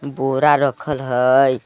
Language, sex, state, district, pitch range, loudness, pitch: Magahi, male, Jharkhand, Palamu, 130-140 Hz, -17 LUFS, 135 Hz